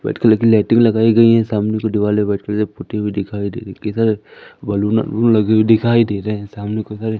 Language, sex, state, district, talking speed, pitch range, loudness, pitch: Hindi, male, Madhya Pradesh, Umaria, 200 wpm, 105-115 Hz, -16 LUFS, 110 Hz